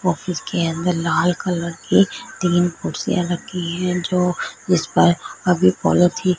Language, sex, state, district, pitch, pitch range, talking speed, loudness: Hindi, female, Punjab, Fazilka, 180 Hz, 175-180 Hz, 150 wpm, -19 LUFS